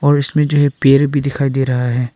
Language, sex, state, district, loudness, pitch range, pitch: Hindi, male, Arunachal Pradesh, Papum Pare, -14 LUFS, 135-145 Hz, 140 Hz